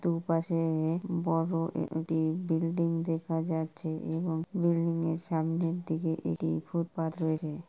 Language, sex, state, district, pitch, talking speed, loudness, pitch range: Bengali, female, West Bengal, Kolkata, 165 Hz, 115 wpm, -31 LUFS, 160-170 Hz